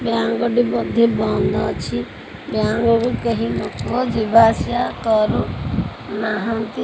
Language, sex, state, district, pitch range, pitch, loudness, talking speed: Odia, female, Odisha, Khordha, 220-230 Hz, 230 Hz, -19 LUFS, 95 wpm